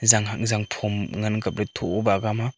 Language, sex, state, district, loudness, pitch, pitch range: Wancho, male, Arunachal Pradesh, Longding, -24 LUFS, 110 Hz, 105-115 Hz